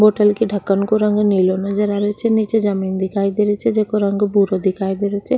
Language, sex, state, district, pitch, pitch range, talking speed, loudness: Rajasthani, female, Rajasthan, Nagaur, 205 Hz, 195-215 Hz, 255 wpm, -17 LUFS